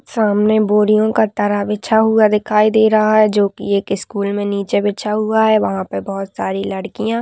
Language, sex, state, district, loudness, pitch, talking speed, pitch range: Hindi, female, Uttarakhand, Tehri Garhwal, -15 LUFS, 210 Hz, 200 wpm, 200-215 Hz